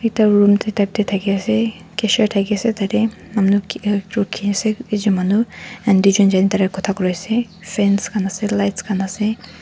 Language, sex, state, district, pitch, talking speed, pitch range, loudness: Nagamese, female, Nagaland, Dimapur, 205 Hz, 135 wpm, 195-215 Hz, -18 LUFS